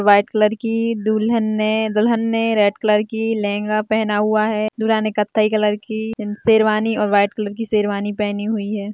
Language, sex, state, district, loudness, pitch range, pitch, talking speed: Hindi, female, Rajasthan, Churu, -18 LUFS, 210-220 Hz, 215 Hz, 180 wpm